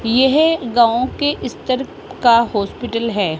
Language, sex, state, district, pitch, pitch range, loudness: Hindi, female, Rajasthan, Jaipur, 240 Hz, 230-270 Hz, -16 LUFS